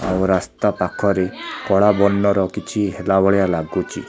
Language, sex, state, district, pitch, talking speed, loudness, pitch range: Odia, male, Odisha, Khordha, 95 Hz, 130 wpm, -18 LUFS, 95-100 Hz